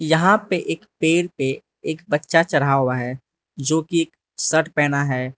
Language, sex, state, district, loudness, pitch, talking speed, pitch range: Hindi, male, Arunachal Pradesh, Lower Dibang Valley, -20 LUFS, 155 Hz, 165 wpm, 135-165 Hz